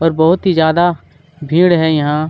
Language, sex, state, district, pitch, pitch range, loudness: Hindi, male, Chhattisgarh, Kabirdham, 160 Hz, 155-170 Hz, -13 LUFS